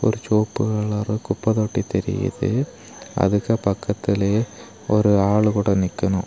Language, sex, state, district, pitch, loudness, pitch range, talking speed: Tamil, male, Tamil Nadu, Kanyakumari, 105 Hz, -21 LUFS, 100-110 Hz, 125 wpm